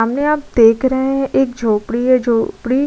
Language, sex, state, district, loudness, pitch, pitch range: Hindi, female, Uttar Pradesh, Budaun, -15 LUFS, 255 Hz, 230-270 Hz